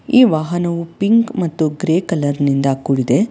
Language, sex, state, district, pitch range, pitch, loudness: Kannada, female, Karnataka, Bangalore, 145-200 Hz, 170 Hz, -16 LUFS